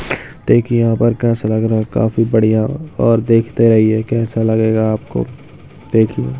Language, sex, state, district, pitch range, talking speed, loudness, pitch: Hindi, male, Bihar, Saharsa, 110-115 Hz, 150 wpm, -15 LUFS, 110 Hz